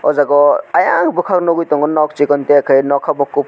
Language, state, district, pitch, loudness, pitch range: Kokborok, Tripura, West Tripura, 145 Hz, -13 LUFS, 145-170 Hz